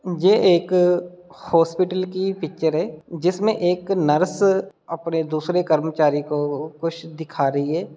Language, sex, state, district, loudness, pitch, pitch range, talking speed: Hindi, male, Bihar, Muzaffarpur, -21 LUFS, 165 Hz, 155-185 Hz, 130 wpm